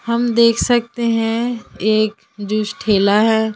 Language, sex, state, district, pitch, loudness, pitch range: Hindi, female, Chhattisgarh, Raipur, 225 Hz, -17 LUFS, 215-235 Hz